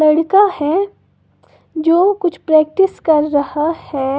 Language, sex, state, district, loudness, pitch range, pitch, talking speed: Hindi, female, Uttar Pradesh, Lalitpur, -15 LUFS, 300-370 Hz, 320 Hz, 115 wpm